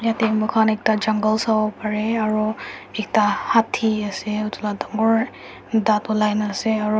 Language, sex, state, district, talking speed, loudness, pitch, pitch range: Nagamese, female, Nagaland, Dimapur, 170 wpm, -21 LUFS, 215 Hz, 210-220 Hz